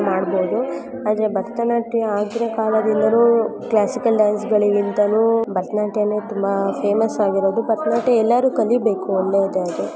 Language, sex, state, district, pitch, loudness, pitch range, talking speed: Kannada, male, Karnataka, Mysore, 215 Hz, -19 LUFS, 205-230 Hz, 85 wpm